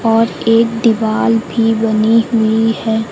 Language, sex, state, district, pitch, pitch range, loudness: Hindi, female, Uttar Pradesh, Lucknow, 225 Hz, 220-230 Hz, -13 LUFS